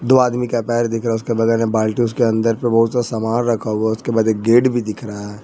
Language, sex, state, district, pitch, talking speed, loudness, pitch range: Hindi, male, Jharkhand, Ranchi, 115 Hz, 295 wpm, -17 LUFS, 110-120 Hz